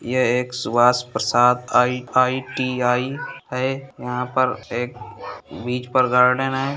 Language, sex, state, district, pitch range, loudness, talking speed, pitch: Hindi, male, Bihar, Gopalganj, 125-130 Hz, -20 LUFS, 125 wpm, 125 Hz